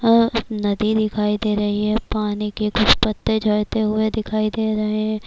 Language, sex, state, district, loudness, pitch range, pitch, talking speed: Urdu, female, Bihar, Kishanganj, -20 LUFS, 210-220 Hz, 215 Hz, 180 wpm